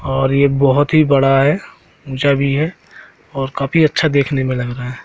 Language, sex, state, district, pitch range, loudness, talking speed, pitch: Hindi, male, Madhya Pradesh, Katni, 135-145 Hz, -15 LUFS, 200 wpm, 140 Hz